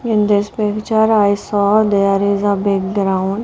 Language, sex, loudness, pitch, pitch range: English, female, -15 LUFS, 205 Hz, 200-210 Hz